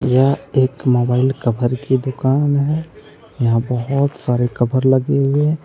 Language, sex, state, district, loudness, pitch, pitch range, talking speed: Hindi, male, Jharkhand, Deoghar, -17 LUFS, 130 Hz, 125-140 Hz, 150 wpm